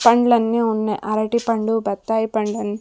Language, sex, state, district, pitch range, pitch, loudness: Telugu, female, Andhra Pradesh, Sri Satya Sai, 215-230 Hz, 220 Hz, -20 LUFS